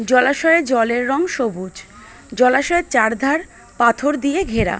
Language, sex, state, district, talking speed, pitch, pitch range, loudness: Bengali, female, West Bengal, Malda, 115 wpm, 260 Hz, 235-300 Hz, -17 LUFS